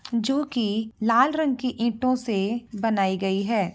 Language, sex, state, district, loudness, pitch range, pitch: Hindi, female, Bihar, Begusarai, -24 LUFS, 210-255 Hz, 230 Hz